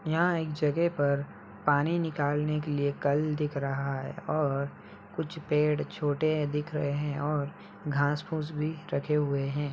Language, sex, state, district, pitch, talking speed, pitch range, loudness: Hindi, male, Uttar Pradesh, Budaun, 150 Hz, 160 wpm, 140-155 Hz, -30 LUFS